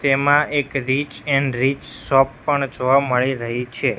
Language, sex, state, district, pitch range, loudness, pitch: Gujarati, male, Gujarat, Gandhinagar, 130-140 Hz, -19 LUFS, 135 Hz